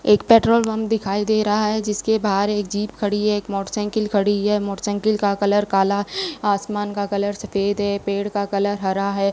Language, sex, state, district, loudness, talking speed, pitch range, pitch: Hindi, female, Rajasthan, Bikaner, -20 LUFS, 200 wpm, 200-210 Hz, 205 Hz